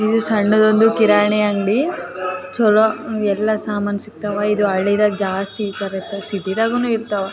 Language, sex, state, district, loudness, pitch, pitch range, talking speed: Kannada, female, Karnataka, Raichur, -18 LUFS, 210 Hz, 200-215 Hz, 130 wpm